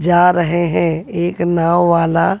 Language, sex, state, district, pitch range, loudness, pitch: Hindi, female, Delhi, New Delhi, 165-175 Hz, -15 LUFS, 170 Hz